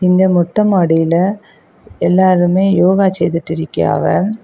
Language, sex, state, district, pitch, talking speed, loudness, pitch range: Tamil, female, Tamil Nadu, Kanyakumari, 185 Hz, 95 wpm, -13 LUFS, 170-195 Hz